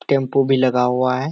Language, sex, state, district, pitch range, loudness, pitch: Hindi, male, Bihar, Kishanganj, 125-135 Hz, -17 LUFS, 130 Hz